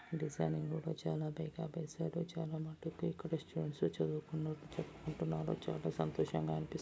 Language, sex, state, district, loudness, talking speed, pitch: Telugu, male, Karnataka, Dharwad, -41 LUFS, 105 wpm, 155 Hz